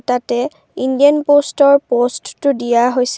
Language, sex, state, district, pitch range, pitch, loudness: Assamese, female, Assam, Kamrup Metropolitan, 245-285 Hz, 260 Hz, -14 LUFS